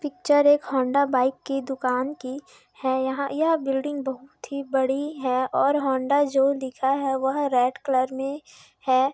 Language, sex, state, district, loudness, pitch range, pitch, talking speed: Hindi, female, Chhattisgarh, Raigarh, -24 LUFS, 260-280 Hz, 270 Hz, 165 wpm